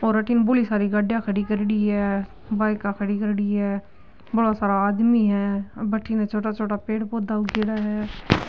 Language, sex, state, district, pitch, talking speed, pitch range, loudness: Marwari, female, Rajasthan, Nagaur, 210 Hz, 165 wpm, 205-220 Hz, -23 LUFS